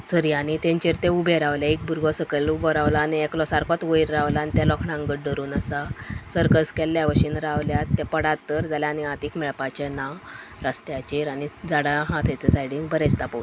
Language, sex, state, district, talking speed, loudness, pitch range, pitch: Konkani, female, Goa, North and South Goa, 190 wpm, -24 LUFS, 145-155 Hz, 150 Hz